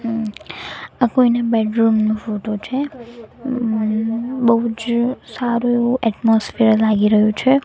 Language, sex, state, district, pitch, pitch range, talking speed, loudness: Gujarati, female, Gujarat, Gandhinagar, 230 Hz, 220-245 Hz, 120 wpm, -18 LUFS